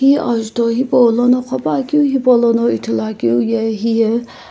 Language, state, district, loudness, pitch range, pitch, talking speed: Sumi, Nagaland, Kohima, -15 LUFS, 220-250 Hz, 235 Hz, 105 wpm